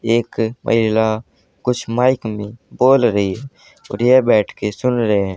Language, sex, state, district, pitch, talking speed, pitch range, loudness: Hindi, male, Haryana, Charkhi Dadri, 115 Hz, 155 wpm, 105-125 Hz, -17 LUFS